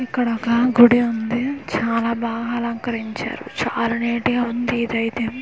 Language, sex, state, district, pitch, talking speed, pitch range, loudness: Telugu, female, Andhra Pradesh, Manyam, 235 Hz, 145 wpm, 230-240 Hz, -20 LUFS